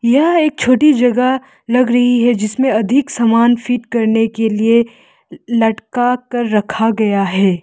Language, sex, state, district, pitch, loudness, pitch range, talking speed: Hindi, female, Arunachal Pradesh, Lower Dibang Valley, 240 Hz, -14 LUFS, 225-255 Hz, 150 wpm